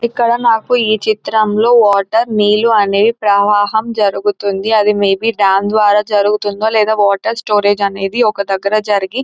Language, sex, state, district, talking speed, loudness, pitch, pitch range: Telugu, female, Telangana, Nalgonda, 150 wpm, -13 LUFS, 210 Hz, 205-220 Hz